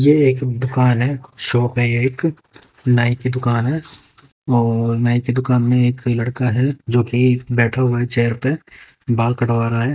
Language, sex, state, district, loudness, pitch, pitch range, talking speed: Hindi, female, Haryana, Jhajjar, -17 LUFS, 125 Hz, 120-130 Hz, 185 wpm